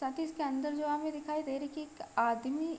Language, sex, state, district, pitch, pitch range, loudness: Hindi, female, Uttar Pradesh, Deoria, 295 Hz, 275-310 Hz, -35 LUFS